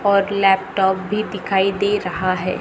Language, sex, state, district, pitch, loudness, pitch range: Hindi, female, Maharashtra, Gondia, 195 Hz, -19 LUFS, 190-200 Hz